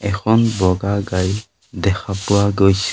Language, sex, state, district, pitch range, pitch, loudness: Assamese, male, Assam, Sonitpur, 95-100 Hz, 100 Hz, -18 LUFS